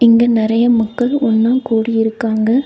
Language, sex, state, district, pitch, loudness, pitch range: Tamil, female, Tamil Nadu, Nilgiris, 230 Hz, -14 LUFS, 225-240 Hz